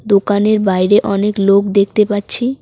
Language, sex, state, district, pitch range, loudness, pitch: Bengali, female, West Bengal, Cooch Behar, 200-210 Hz, -13 LUFS, 205 Hz